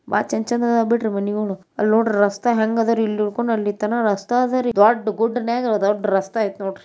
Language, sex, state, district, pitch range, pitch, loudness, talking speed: Kannada, female, Karnataka, Bijapur, 205-235 Hz, 220 Hz, -20 LUFS, 150 wpm